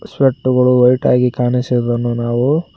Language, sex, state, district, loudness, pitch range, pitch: Kannada, male, Karnataka, Koppal, -14 LUFS, 120-130 Hz, 125 Hz